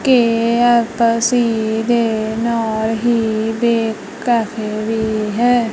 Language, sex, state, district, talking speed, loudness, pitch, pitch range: Punjabi, female, Punjab, Kapurthala, 85 wpm, -16 LUFS, 230 Hz, 220-235 Hz